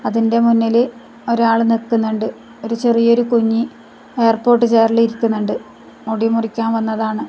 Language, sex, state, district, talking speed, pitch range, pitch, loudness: Malayalam, female, Kerala, Kasaragod, 115 wpm, 225-235 Hz, 230 Hz, -16 LUFS